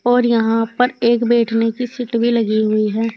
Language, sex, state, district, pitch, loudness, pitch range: Hindi, female, Uttar Pradesh, Saharanpur, 230 Hz, -17 LUFS, 225-245 Hz